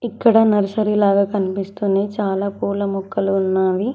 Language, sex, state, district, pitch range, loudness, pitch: Telugu, female, Telangana, Mahabubabad, 195-210 Hz, -18 LUFS, 200 Hz